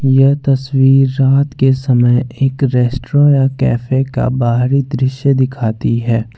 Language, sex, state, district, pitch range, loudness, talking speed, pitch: Hindi, male, Jharkhand, Ranchi, 125-135 Hz, -13 LUFS, 120 wpm, 135 Hz